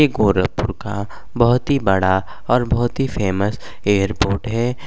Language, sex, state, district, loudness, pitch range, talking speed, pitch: Bhojpuri, male, Uttar Pradesh, Gorakhpur, -19 LUFS, 100-125 Hz, 150 wpm, 105 Hz